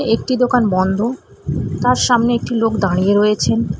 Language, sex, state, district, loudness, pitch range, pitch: Bengali, female, West Bengal, Alipurduar, -16 LUFS, 200-240 Hz, 225 Hz